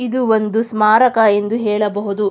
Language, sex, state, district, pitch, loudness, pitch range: Kannada, female, Karnataka, Mysore, 215 Hz, -15 LUFS, 210-225 Hz